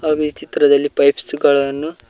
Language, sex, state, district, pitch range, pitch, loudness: Kannada, male, Karnataka, Koppal, 140-150 Hz, 145 Hz, -16 LUFS